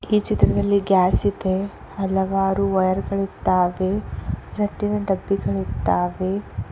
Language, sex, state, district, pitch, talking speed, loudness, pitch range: Kannada, female, Karnataka, Koppal, 190 Hz, 90 wpm, -22 LUFS, 125-200 Hz